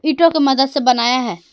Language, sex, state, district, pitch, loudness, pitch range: Hindi, female, Jharkhand, Ranchi, 270 Hz, -15 LUFS, 250-300 Hz